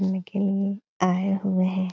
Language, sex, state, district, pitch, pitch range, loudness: Hindi, female, Bihar, Supaul, 190 Hz, 185-195 Hz, -25 LUFS